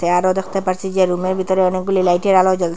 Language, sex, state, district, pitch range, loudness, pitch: Bengali, female, Assam, Hailakandi, 180-190 Hz, -17 LUFS, 185 Hz